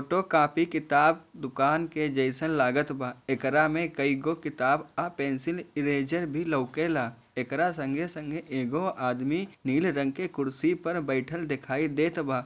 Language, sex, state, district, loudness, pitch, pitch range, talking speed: Bhojpuri, male, Bihar, Gopalganj, -28 LUFS, 150 Hz, 135-165 Hz, 145 wpm